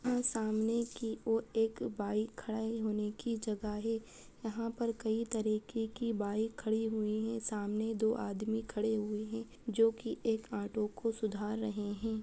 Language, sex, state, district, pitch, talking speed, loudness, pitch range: Hindi, female, Bihar, Araria, 220 Hz, 170 wpm, -36 LUFS, 215-225 Hz